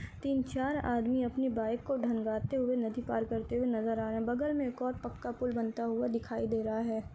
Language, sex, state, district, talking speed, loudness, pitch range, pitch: Hindi, female, Bihar, Samastipur, 225 wpm, -34 LUFS, 225-255 Hz, 240 Hz